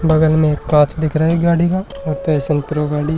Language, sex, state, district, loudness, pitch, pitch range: Hindi, male, Rajasthan, Nagaur, -16 LUFS, 155 Hz, 150-165 Hz